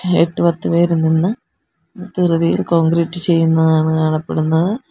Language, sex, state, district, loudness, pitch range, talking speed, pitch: Malayalam, female, Kerala, Kollam, -16 LUFS, 160-175 Hz, 100 wpm, 170 Hz